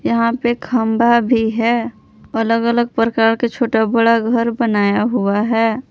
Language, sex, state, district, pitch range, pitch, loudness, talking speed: Hindi, female, Jharkhand, Palamu, 225-235 Hz, 230 Hz, -16 LUFS, 150 wpm